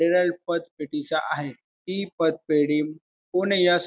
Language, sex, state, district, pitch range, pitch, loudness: Marathi, male, Maharashtra, Pune, 150-180 Hz, 165 Hz, -25 LUFS